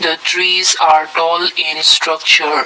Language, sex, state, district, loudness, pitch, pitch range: English, male, Assam, Kamrup Metropolitan, -11 LUFS, 165 Hz, 155-180 Hz